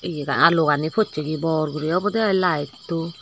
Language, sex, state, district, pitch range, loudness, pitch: Chakma, female, Tripura, Dhalai, 150-180 Hz, -21 LUFS, 165 Hz